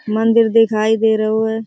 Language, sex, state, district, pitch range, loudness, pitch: Hindi, female, Uttar Pradesh, Budaun, 220-225 Hz, -15 LUFS, 220 Hz